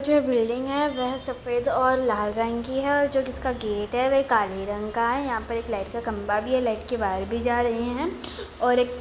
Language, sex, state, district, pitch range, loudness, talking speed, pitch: Hindi, female, Jharkhand, Jamtara, 225-260 Hz, -25 LUFS, 235 wpm, 240 Hz